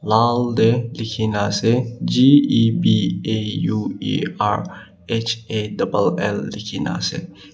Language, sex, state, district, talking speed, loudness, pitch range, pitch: Nagamese, male, Nagaland, Kohima, 70 wpm, -19 LUFS, 105-120 Hz, 115 Hz